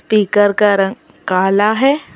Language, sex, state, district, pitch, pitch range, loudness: Hindi, female, Telangana, Hyderabad, 205 Hz, 195-215 Hz, -14 LUFS